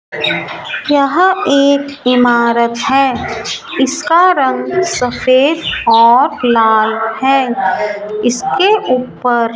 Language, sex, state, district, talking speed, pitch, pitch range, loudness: Hindi, male, Rajasthan, Jaipur, 80 wpm, 255 Hz, 235-285 Hz, -12 LUFS